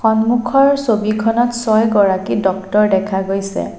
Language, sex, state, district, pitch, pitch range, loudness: Assamese, female, Assam, Sonitpur, 215 Hz, 195-230 Hz, -15 LUFS